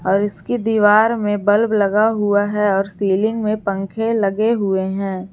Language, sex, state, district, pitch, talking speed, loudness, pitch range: Hindi, female, Jharkhand, Garhwa, 205 Hz, 170 wpm, -17 LUFS, 195-220 Hz